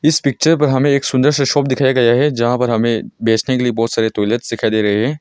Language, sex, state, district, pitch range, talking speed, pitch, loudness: Hindi, male, Arunachal Pradesh, Longding, 115-140 Hz, 275 wpm, 125 Hz, -15 LUFS